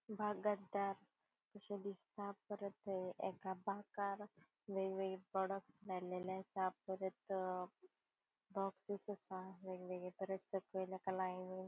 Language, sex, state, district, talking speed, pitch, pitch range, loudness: Konkani, female, Goa, North and South Goa, 70 wpm, 190 Hz, 185-200 Hz, -46 LUFS